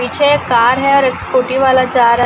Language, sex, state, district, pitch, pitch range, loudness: Hindi, female, Chhattisgarh, Raipur, 255 Hz, 245-270 Hz, -12 LUFS